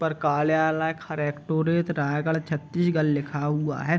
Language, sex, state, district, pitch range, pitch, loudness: Hindi, male, Chhattisgarh, Raigarh, 150-160 Hz, 155 Hz, -25 LUFS